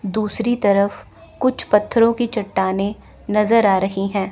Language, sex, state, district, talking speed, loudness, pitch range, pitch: Hindi, female, Chandigarh, Chandigarh, 140 wpm, -18 LUFS, 195-230 Hz, 210 Hz